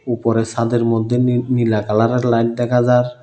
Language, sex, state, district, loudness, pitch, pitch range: Bengali, male, Tripura, South Tripura, -17 LUFS, 120 Hz, 115-125 Hz